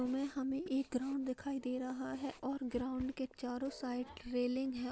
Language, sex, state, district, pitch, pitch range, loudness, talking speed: Hindi, female, Bihar, Gaya, 260 Hz, 250-270 Hz, -40 LUFS, 185 wpm